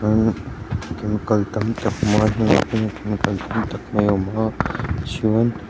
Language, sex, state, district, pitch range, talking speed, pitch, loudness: Mizo, male, Mizoram, Aizawl, 105-110 Hz, 145 wpm, 110 Hz, -21 LUFS